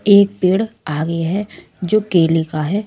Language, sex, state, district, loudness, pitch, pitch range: Hindi, female, Punjab, Kapurthala, -17 LUFS, 185 Hz, 165-205 Hz